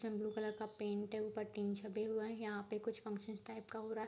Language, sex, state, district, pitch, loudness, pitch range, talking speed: Hindi, female, Bihar, East Champaran, 215 Hz, -44 LUFS, 210-220 Hz, 280 wpm